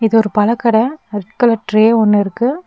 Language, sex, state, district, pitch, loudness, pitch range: Tamil, female, Tamil Nadu, Nilgiris, 225 Hz, -13 LUFS, 215-235 Hz